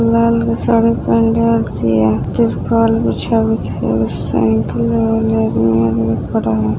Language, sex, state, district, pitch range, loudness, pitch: Maithili, female, Bihar, Samastipur, 110-115 Hz, -15 LUFS, 115 Hz